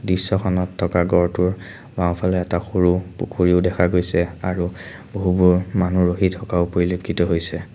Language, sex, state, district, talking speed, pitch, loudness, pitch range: Assamese, male, Assam, Sonitpur, 125 wpm, 90 Hz, -20 LUFS, 90-95 Hz